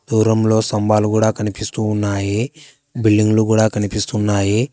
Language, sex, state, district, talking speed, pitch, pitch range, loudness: Telugu, female, Telangana, Hyderabad, 100 wpm, 110 Hz, 105-110 Hz, -17 LUFS